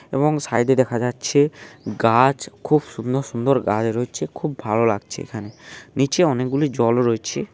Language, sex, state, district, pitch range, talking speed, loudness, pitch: Bengali, male, West Bengal, Dakshin Dinajpur, 115-140 Hz, 145 wpm, -20 LUFS, 130 Hz